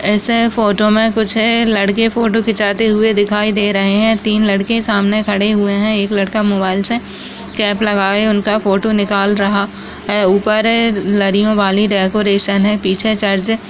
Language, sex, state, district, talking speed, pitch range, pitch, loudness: Hindi, female, Maharashtra, Chandrapur, 165 wpm, 200-220 Hz, 210 Hz, -13 LUFS